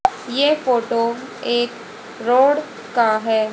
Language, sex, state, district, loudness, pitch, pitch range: Hindi, female, Haryana, Jhajjar, -19 LUFS, 240 Hz, 230-265 Hz